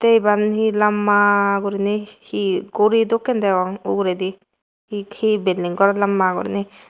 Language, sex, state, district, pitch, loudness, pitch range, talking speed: Chakma, female, Tripura, West Tripura, 205 Hz, -19 LUFS, 195-210 Hz, 120 wpm